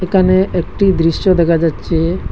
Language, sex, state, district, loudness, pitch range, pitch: Bengali, male, Assam, Hailakandi, -14 LUFS, 165-190 Hz, 175 Hz